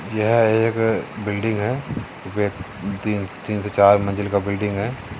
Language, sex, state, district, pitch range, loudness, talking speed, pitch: Hindi, male, Maharashtra, Sindhudurg, 100-110 Hz, -21 LUFS, 140 wpm, 105 Hz